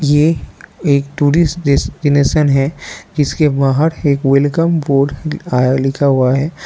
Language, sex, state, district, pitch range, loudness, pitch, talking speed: Hindi, male, Arunachal Pradesh, Lower Dibang Valley, 140-155 Hz, -14 LUFS, 145 Hz, 115 wpm